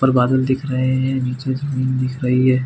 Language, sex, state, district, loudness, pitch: Hindi, male, Chhattisgarh, Bilaspur, -19 LUFS, 130 Hz